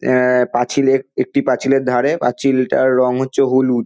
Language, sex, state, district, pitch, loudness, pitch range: Bengali, male, West Bengal, North 24 Parganas, 130 Hz, -16 LUFS, 125-135 Hz